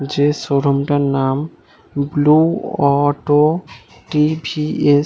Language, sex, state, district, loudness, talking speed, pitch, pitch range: Bengali, male, West Bengal, Malda, -16 LUFS, 60 wpm, 145 Hz, 140-150 Hz